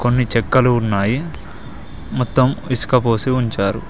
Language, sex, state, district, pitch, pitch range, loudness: Telugu, male, Telangana, Mahabubabad, 125 Hz, 115-130 Hz, -17 LUFS